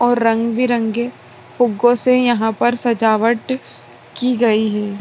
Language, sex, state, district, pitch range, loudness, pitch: Hindi, female, Bihar, Saran, 225-245 Hz, -17 LUFS, 240 Hz